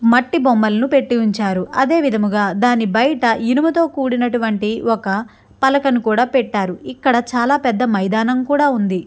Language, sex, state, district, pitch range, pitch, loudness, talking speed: Telugu, female, Andhra Pradesh, Chittoor, 215-265 Hz, 240 Hz, -16 LUFS, 125 wpm